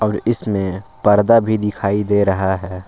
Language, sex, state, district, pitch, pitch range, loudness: Hindi, male, Jharkhand, Palamu, 105 Hz, 95-110 Hz, -17 LUFS